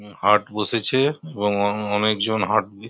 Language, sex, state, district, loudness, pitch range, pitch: Bengali, male, West Bengal, Purulia, -21 LUFS, 105-110 Hz, 105 Hz